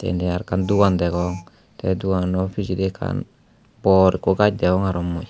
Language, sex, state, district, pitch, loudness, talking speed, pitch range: Chakma, male, Tripura, Unakoti, 95 Hz, -21 LUFS, 170 wpm, 90-95 Hz